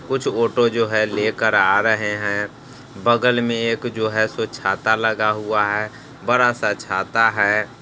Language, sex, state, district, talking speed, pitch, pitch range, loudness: Hindi, male, Bihar, Sitamarhi, 170 wpm, 110 Hz, 105-120 Hz, -19 LUFS